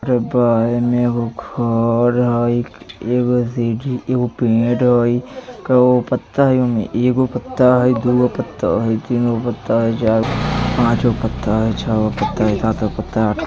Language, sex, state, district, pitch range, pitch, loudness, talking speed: Bajjika, male, Bihar, Vaishali, 115-125 Hz, 120 Hz, -17 LUFS, 180 wpm